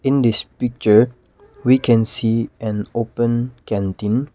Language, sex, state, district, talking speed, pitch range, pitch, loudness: English, male, Nagaland, Kohima, 125 wpm, 110-125 Hz, 115 Hz, -19 LUFS